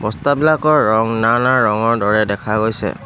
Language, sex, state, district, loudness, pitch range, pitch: Assamese, male, Assam, Hailakandi, -15 LUFS, 105-130 Hz, 110 Hz